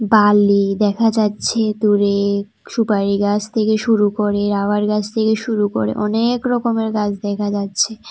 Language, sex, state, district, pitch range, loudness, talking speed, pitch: Bengali, female, Tripura, South Tripura, 205-220 Hz, -17 LUFS, 140 wpm, 210 Hz